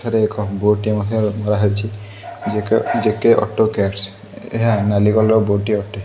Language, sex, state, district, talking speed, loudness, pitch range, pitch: Odia, male, Odisha, Khordha, 170 wpm, -17 LUFS, 100-110 Hz, 105 Hz